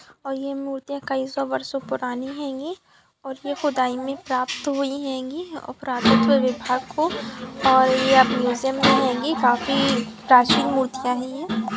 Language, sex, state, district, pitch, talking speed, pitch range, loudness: Hindi, female, Bihar, Araria, 265 Hz, 155 wpm, 255-275 Hz, -21 LUFS